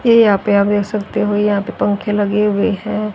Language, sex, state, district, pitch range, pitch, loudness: Hindi, female, Haryana, Rohtak, 205-210 Hz, 210 Hz, -16 LUFS